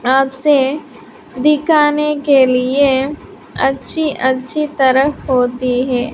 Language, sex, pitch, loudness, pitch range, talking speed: Hindi, female, 270 Hz, -14 LUFS, 260-295 Hz, 100 wpm